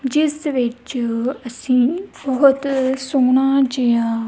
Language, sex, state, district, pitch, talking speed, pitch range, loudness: Punjabi, female, Punjab, Kapurthala, 260 Hz, 85 wpm, 245-275 Hz, -18 LUFS